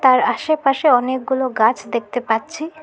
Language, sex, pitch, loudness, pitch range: Bengali, female, 260 Hz, -18 LUFS, 235-285 Hz